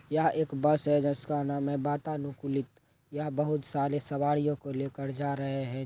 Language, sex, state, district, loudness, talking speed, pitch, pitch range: Angika, male, Bihar, Begusarai, -31 LUFS, 175 wpm, 145 Hz, 140-150 Hz